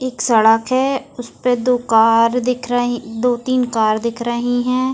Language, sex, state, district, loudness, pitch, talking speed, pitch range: Hindi, female, Goa, North and South Goa, -16 LUFS, 245 Hz, 180 wpm, 230-250 Hz